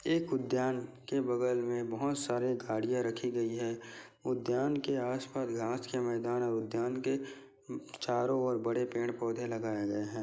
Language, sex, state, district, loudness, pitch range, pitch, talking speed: Hindi, male, Bihar, Kishanganj, -34 LUFS, 115-130 Hz, 125 Hz, 160 wpm